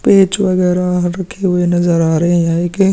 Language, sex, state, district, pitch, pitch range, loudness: Hindi, male, Chhattisgarh, Sukma, 180 Hz, 175-185 Hz, -14 LUFS